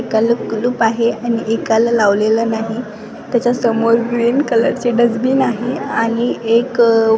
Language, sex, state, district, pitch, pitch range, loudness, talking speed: Marathi, female, Maharashtra, Washim, 230 Hz, 225-240 Hz, -15 LUFS, 125 wpm